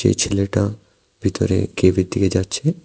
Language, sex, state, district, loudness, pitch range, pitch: Bengali, male, Tripura, West Tripura, -19 LUFS, 95-110 Hz, 100 Hz